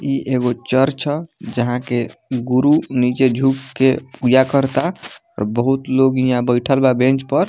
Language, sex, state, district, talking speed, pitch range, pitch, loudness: Bhojpuri, male, Bihar, Muzaffarpur, 160 wpm, 125-135 Hz, 130 Hz, -17 LUFS